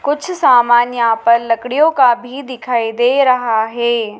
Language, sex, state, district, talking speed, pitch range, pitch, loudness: Hindi, female, Madhya Pradesh, Dhar, 155 wpm, 235-255 Hz, 240 Hz, -14 LUFS